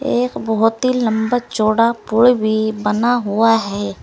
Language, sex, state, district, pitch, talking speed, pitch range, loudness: Hindi, female, Uttar Pradesh, Saharanpur, 225 Hz, 150 wpm, 215-240 Hz, -16 LUFS